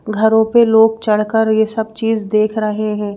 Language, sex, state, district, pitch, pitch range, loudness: Hindi, female, Madhya Pradesh, Bhopal, 220 Hz, 215-225 Hz, -14 LUFS